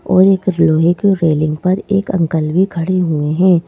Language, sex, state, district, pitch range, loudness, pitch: Hindi, female, Madhya Pradesh, Bhopal, 160-190 Hz, -14 LUFS, 175 Hz